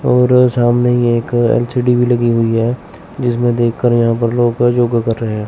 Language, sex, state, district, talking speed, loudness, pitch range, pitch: Hindi, male, Chandigarh, Chandigarh, 195 wpm, -14 LUFS, 115-120 Hz, 120 Hz